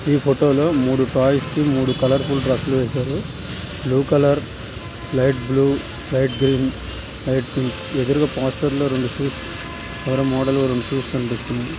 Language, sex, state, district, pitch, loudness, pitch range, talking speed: Telugu, male, Andhra Pradesh, Visakhapatnam, 135 Hz, -20 LUFS, 130-140 Hz, 70 wpm